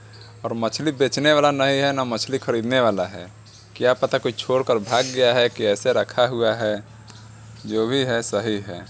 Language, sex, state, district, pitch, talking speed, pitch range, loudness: Hindi, male, Bihar, Saran, 115 Hz, 195 wpm, 110-130 Hz, -21 LUFS